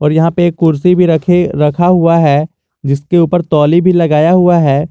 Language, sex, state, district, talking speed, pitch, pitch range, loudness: Hindi, male, Jharkhand, Garhwa, 195 wpm, 165 Hz, 150-175 Hz, -10 LUFS